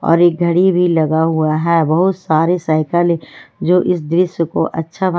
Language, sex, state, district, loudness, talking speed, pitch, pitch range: Hindi, female, Jharkhand, Ranchi, -15 LUFS, 175 wpm, 170 Hz, 160-180 Hz